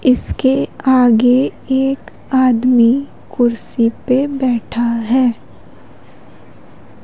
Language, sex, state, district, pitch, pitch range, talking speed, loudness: Hindi, female, Madhya Pradesh, Umaria, 250 Hz, 240-265 Hz, 70 wpm, -15 LUFS